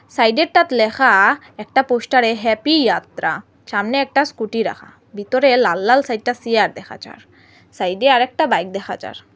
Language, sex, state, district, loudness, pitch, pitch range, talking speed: Bengali, female, Assam, Hailakandi, -16 LUFS, 245 Hz, 210-270 Hz, 145 wpm